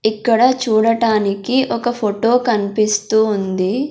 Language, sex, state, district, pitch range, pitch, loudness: Telugu, female, Andhra Pradesh, Sri Satya Sai, 210-240 Hz, 220 Hz, -16 LUFS